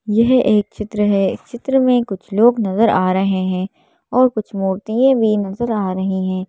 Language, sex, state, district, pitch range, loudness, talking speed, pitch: Hindi, female, Madhya Pradesh, Bhopal, 190-240 Hz, -17 LUFS, 185 wpm, 210 Hz